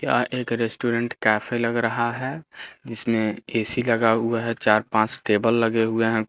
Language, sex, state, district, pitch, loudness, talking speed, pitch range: Hindi, male, Bihar, Patna, 115 Hz, -23 LUFS, 170 wpm, 110-120 Hz